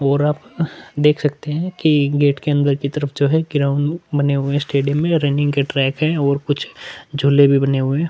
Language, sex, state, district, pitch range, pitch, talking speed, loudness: Hindi, male, Chhattisgarh, Korba, 140-150 Hz, 145 Hz, 230 wpm, -18 LUFS